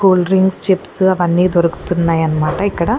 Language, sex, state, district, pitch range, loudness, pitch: Telugu, female, Andhra Pradesh, Guntur, 170-190 Hz, -14 LUFS, 180 Hz